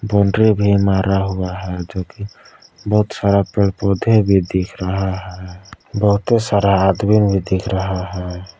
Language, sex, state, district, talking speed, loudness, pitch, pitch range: Hindi, male, Jharkhand, Palamu, 155 wpm, -17 LUFS, 95 Hz, 95-100 Hz